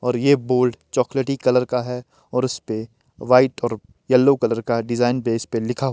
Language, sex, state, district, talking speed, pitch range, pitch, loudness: Hindi, male, Himachal Pradesh, Shimla, 200 wpm, 115-130 Hz, 125 Hz, -20 LUFS